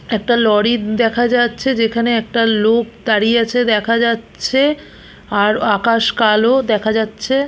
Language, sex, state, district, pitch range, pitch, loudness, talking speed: Bengali, female, West Bengal, Purulia, 215-240 Hz, 230 Hz, -15 LUFS, 130 wpm